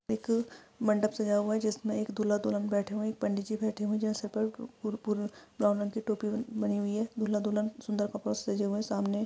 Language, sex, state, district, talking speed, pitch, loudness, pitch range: Hindi, female, Maharashtra, Pune, 225 wpm, 215 Hz, -32 LUFS, 205-220 Hz